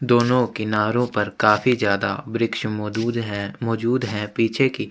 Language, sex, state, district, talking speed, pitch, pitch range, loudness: Hindi, male, Chhattisgarh, Sukma, 145 wpm, 115 Hz, 105-120 Hz, -21 LUFS